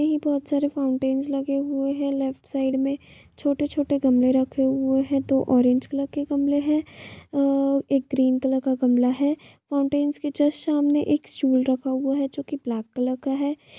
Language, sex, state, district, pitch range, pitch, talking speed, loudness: Hindi, female, Bihar, Gopalganj, 265-285 Hz, 275 Hz, 185 wpm, -23 LUFS